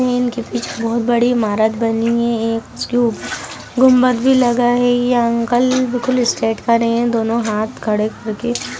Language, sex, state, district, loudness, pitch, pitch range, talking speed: Hindi, female, Bihar, Sitamarhi, -16 LUFS, 235 Hz, 230-245 Hz, 170 wpm